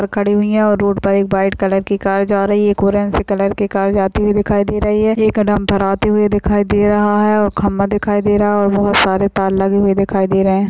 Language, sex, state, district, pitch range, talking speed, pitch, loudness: Hindi, female, Bihar, Madhepura, 195-205 Hz, 280 wpm, 200 Hz, -14 LUFS